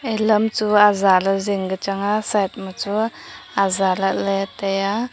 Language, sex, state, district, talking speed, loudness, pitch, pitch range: Wancho, female, Arunachal Pradesh, Longding, 165 wpm, -19 LUFS, 200 Hz, 195-215 Hz